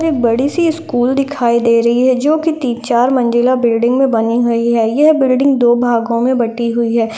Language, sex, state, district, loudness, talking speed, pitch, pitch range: Hindi, female, Bihar, Lakhisarai, -13 LUFS, 225 wpm, 245 Hz, 235-270 Hz